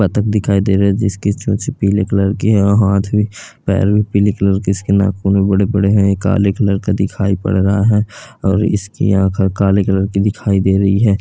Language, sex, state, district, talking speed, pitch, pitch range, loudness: Hindi, male, Bihar, East Champaran, 225 wpm, 100 Hz, 100-105 Hz, -14 LUFS